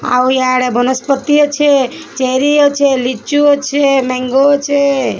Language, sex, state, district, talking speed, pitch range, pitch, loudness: Odia, female, Odisha, Sambalpur, 115 wpm, 255-285 Hz, 275 Hz, -12 LUFS